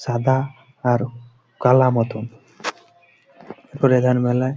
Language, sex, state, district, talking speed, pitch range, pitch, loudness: Bengali, male, West Bengal, Malda, 80 wpm, 120-130 Hz, 125 Hz, -20 LUFS